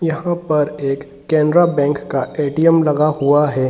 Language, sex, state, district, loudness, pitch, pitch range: Hindi, male, Bihar, Gaya, -16 LUFS, 150 Hz, 140-160 Hz